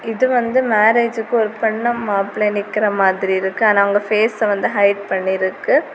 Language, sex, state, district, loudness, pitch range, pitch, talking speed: Tamil, female, Tamil Nadu, Kanyakumari, -17 LUFS, 200-225 Hz, 210 Hz, 150 wpm